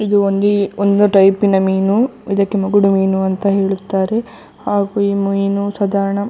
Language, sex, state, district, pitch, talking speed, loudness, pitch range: Kannada, female, Karnataka, Dakshina Kannada, 200 Hz, 150 wpm, -15 LUFS, 195-205 Hz